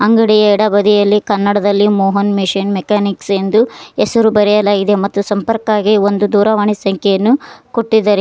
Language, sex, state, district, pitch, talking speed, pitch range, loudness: Kannada, female, Karnataka, Koppal, 205 Hz, 100 wpm, 200-215 Hz, -13 LUFS